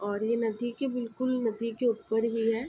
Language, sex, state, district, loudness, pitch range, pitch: Hindi, female, Uttar Pradesh, Ghazipur, -30 LUFS, 225-240 Hz, 230 Hz